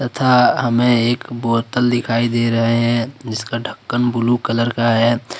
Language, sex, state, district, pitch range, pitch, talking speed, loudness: Hindi, male, Jharkhand, Ranchi, 115-120 Hz, 120 Hz, 155 wpm, -17 LUFS